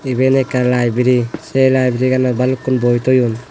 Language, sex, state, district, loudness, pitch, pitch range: Chakma, male, Tripura, West Tripura, -15 LUFS, 125 Hz, 125-130 Hz